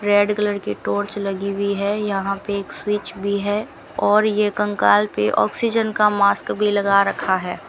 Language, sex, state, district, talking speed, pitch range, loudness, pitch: Hindi, female, Rajasthan, Bikaner, 185 wpm, 195-210 Hz, -20 LUFS, 200 Hz